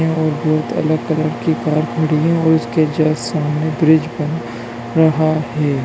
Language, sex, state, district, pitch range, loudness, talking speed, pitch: Hindi, male, Bihar, Begusarai, 150-160 Hz, -16 LUFS, 165 wpm, 155 Hz